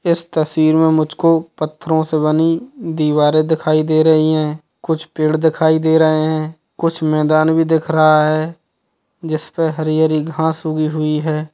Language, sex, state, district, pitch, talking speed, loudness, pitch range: Hindi, male, Bihar, Sitamarhi, 155 Hz, 165 wpm, -16 LUFS, 155-160 Hz